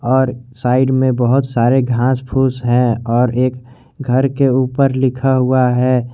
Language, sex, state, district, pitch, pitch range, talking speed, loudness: Hindi, male, Jharkhand, Garhwa, 130 Hz, 125-130 Hz, 155 wpm, -15 LUFS